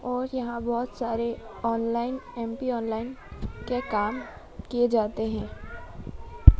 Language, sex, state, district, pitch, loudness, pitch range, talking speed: Hindi, female, Madhya Pradesh, Dhar, 235 Hz, -29 LUFS, 230-245 Hz, 110 wpm